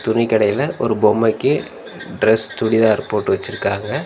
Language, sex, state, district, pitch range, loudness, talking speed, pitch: Tamil, male, Tamil Nadu, Nilgiris, 110-115 Hz, -17 LUFS, 105 wpm, 110 Hz